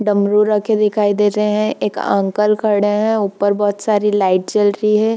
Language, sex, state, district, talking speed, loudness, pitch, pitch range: Hindi, female, Bihar, Purnia, 195 wpm, -16 LUFS, 210 Hz, 205-215 Hz